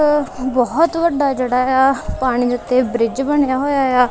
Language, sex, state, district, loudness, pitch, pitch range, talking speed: Punjabi, female, Punjab, Kapurthala, -16 LUFS, 260 Hz, 250-285 Hz, 160 wpm